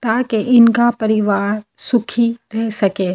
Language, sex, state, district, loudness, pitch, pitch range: Hindi, female, Delhi, New Delhi, -16 LUFS, 220 Hz, 210-235 Hz